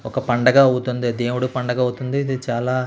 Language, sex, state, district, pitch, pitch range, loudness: Telugu, male, Andhra Pradesh, Srikakulam, 125 Hz, 125-130 Hz, -19 LUFS